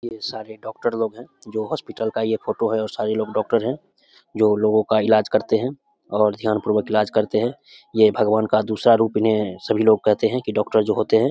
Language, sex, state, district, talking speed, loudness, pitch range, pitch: Hindi, male, Bihar, Samastipur, 225 wpm, -20 LUFS, 110-115 Hz, 110 Hz